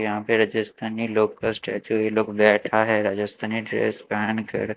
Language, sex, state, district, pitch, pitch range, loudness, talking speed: Hindi, male, Haryana, Jhajjar, 110 Hz, 105-110 Hz, -23 LUFS, 175 wpm